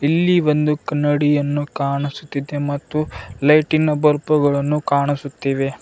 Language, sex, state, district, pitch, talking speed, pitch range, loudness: Kannada, male, Karnataka, Bidar, 145 Hz, 80 wpm, 140-150 Hz, -19 LUFS